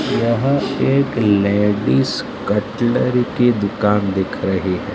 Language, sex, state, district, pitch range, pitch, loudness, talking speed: Hindi, male, Maharashtra, Mumbai Suburban, 100-120 Hz, 105 Hz, -17 LUFS, 110 wpm